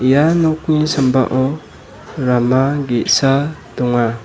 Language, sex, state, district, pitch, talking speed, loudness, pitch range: Garo, male, Meghalaya, West Garo Hills, 130 Hz, 85 wpm, -15 LUFS, 120-145 Hz